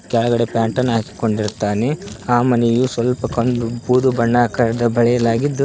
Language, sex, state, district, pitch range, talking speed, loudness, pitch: Kannada, male, Karnataka, Koppal, 115-125 Hz, 115 wpm, -17 LUFS, 120 Hz